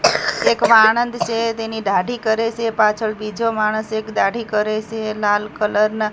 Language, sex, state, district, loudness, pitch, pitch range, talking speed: Gujarati, female, Gujarat, Gandhinagar, -18 LUFS, 220 Hz, 215-225 Hz, 175 wpm